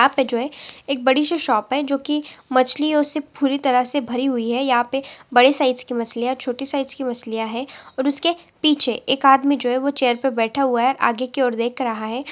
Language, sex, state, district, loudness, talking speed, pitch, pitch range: Hindi, female, Andhra Pradesh, Guntur, -20 LUFS, 220 wpm, 265 Hz, 245-280 Hz